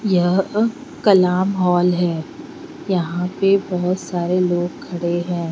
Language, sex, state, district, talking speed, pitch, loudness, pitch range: Hindi, female, Bihar, Patna, 130 wpm, 180 Hz, -19 LUFS, 175-195 Hz